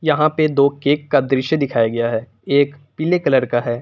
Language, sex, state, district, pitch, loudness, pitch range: Hindi, male, Jharkhand, Palamu, 140 Hz, -18 LUFS, 120-150 Hz